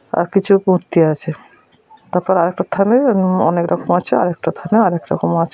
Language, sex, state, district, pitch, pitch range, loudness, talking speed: Bengali, female, West Bengal, North 24 Parganas, 180 Hz, 170-195 Hz, -16 LUFS, 175 wpm